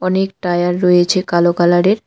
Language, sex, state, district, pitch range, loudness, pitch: Bengali, female, West Bengal, Cooch Behar, 175-185 Hz, -14 LUFS, 180 Hz